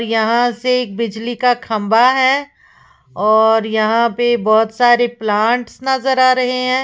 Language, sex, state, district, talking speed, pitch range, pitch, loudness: Hindi, female, Uttar Pradesh, Lalitpur, 140 wpm, 220-250 Hz, 240 Hz, -15 LUFS